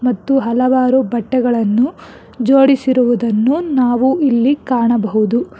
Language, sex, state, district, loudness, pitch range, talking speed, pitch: Kannada, female, Karnataka, Bangalore, -14 LUFS, 235-265 Hz, 75 wpm, 250 Hz